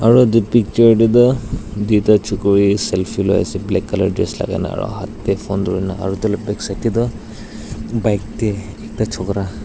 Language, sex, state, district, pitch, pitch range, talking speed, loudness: Nagamese, male, Nagaland, Dimapur, 105 Hz, 100-110 Hz, 195 wpm, -17 LUFS